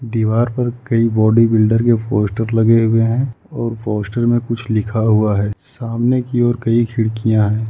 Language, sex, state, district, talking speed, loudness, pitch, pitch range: Hindi, male, Jharkhand, Ranchi, 180 wpm, -16 LUFS, 115 Hz, 110-120 Hz